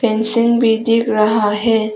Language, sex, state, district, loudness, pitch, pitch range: Hindi, female, Arunachal Pradesh, Papum Pare, -15 LUFS, 225 Hz, 215-230 Hz